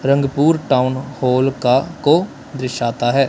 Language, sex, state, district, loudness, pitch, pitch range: Hindi, male, Punjab, Kapurthala, -17 LUFS, 135 Hz, 130-145 Hz